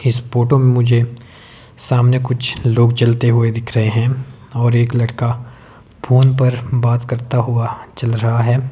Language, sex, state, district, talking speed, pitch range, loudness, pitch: Hindi, male, Himachal Pradesh, Shimla, 160 wpm, 120-125 Hz, -15 LUFS, 120 Hz